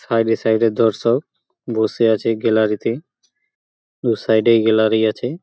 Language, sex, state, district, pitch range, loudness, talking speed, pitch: Bengali, male, West Bengal, Purulia, 110-115 Hz, -17 LUFS, 165 wpm, 115 Hz